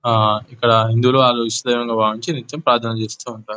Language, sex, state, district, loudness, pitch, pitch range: Telugu, male, Telangana, Nalgonda, -17 LUFS, 115 Hz, 110-125 Hz